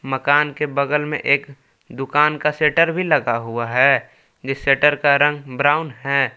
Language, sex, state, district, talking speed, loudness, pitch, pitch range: Hindi, male, Jharkhand, Palamu, 170 wpm, -18 LUFS, 140 Hz, 135-150 Hz